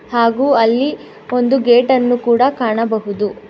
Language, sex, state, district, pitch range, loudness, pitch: Kannada, female, Karnataka, Bangalore, 230-255 Hz, -15 LUFS, 240 Hz